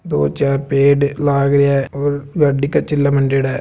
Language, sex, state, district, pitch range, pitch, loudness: Marwari, male, Rajasthan, Nagaur, 135-140 Hz, 140 Hz, -16 LUFS